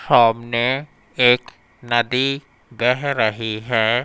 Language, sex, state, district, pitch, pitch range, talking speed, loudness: Hindi, male, Madhya Pradesh, Umaria, 120 Hz, 115-130 Hz, 90 wpm, -19 LUFS